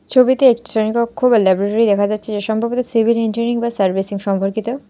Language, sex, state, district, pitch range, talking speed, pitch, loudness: Bengali, female, West Bengal, Alipurduar, 205-235 Hz, 170 wpm, 225 Hz, -16 LUFS